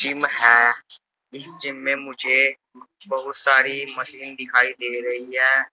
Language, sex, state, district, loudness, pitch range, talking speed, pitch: Hindi, male, Uttar Pradesh, Saharanpur, -20 LUFS, 125-135 Hz, 135 wpm, 130 Hz